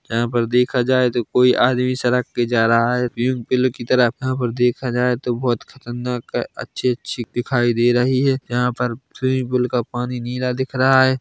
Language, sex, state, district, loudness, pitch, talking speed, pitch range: Hindi, male, Chhattisgarh, Bilaspur, -19 LUFS, 125 Hz, 220 wpm, 120-130 Hz